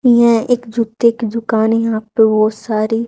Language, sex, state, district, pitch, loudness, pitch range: Hindi, female, Haryana, Charkhi Dadri, 225 Hz, -15 LUFS, 220-235 Hz